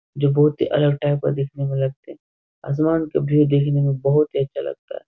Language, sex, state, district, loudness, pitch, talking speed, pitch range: Hindi, male, Bihar, Jahanabad, -20 LUFS, 145 Hz, 235 wpm, 140-150 Hz